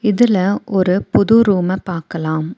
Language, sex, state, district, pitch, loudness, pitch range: Tamil, female, Tamil Nadu, Nilgiris, 190 Hz, -15 LUFS, 175-210 Hz